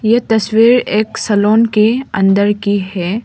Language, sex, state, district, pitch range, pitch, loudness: Hindi, female, Arunachal Pradesh, Lower Dibang Valley, 200-225 Hz, 215 Hz, -13 LUFS